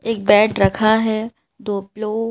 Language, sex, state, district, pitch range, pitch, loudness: Hindi, female, Madhya Pradesh, Bhopal, 210-225 Hz, 220 Hz, -17 LUFS